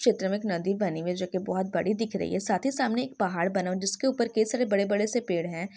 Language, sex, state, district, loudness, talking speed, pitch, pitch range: Hindi, female, Maharashtra, Pune, -28 LUFS, 260 wpm, 200 Hz, 185-225 Hz